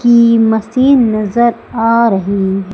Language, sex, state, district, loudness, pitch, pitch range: Hindi, female, Madhya Pradesh, Umaria, -11 LUFS, 230 Hz, 210-235 Hz